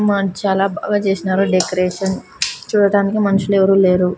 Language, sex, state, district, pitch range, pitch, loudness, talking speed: Telugu, female, Andhra Pradesh, Sri Satya Sai, 190-200 Hz, 195 Hz, -16 LUFS, 130 wpm